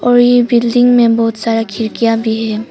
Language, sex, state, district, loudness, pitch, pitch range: Hindi, female, Arunachal Pradesh, Papum Pare, -12 LUFS, 230 Hz, 225-245 Hz